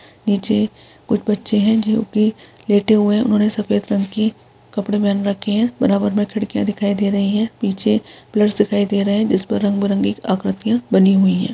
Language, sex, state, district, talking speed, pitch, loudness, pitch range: Hindi, female, Chhattisgarh, Sukma, 190 wpm, 210 Hz, -18 LUFS, 200-215 Hz